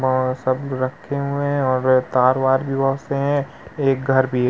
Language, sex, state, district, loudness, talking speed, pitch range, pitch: Hindi, male, Uttar Pradesh, Muzaffarnagar, -20 LUFS, 215 wpm, 130-140 Hz, 130 Hz